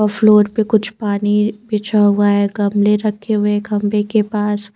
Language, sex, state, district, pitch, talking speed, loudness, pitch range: Hindi, female, Chandigarh, Chandigarh, 210 Hz, 175 wpm, -16 LUFS, 205-215 Hz